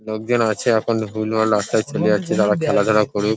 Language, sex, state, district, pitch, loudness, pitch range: Bengali, male, West Bengal, Paschim Medinipur, 110 Hz, -19 LUFS, 105-110 Hz